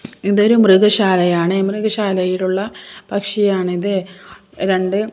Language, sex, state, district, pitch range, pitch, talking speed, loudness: Malayalam, female, Kerala, Kasaragod, 185-205 Hz, 195 Hz, 60 wpm, -16 LUFS